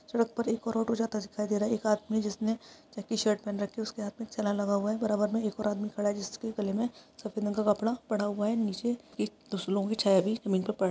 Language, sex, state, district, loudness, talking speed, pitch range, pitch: Hindi, female, Uttar Pradesh, Jalaun, -31 LUFS, 285 wpm, 205-225 Hz, 215 Hz